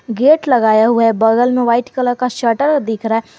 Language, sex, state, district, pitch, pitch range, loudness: Hindi, female, Jharkhand, Garhwa, 235 Hz, 225-250 Hz, -14 LUFS